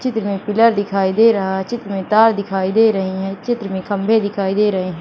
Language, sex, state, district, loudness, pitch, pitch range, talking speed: Hindi, female, Madhya Pradesh, Katni, -17 LUFS, 200 Hz, 190-220 Hz, 225 wpm